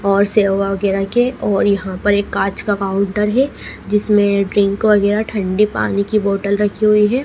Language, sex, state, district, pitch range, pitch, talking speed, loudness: Hindi, female, Madhya Pradesh, Dhar, 200-210 Hz, 205 Hz, 180 wpm, -16 LUFS